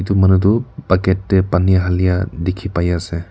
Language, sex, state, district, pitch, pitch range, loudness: Nagamese, male, Nagaland, Kohima, 95 Hz, 90-95 Hz, -16 LUFS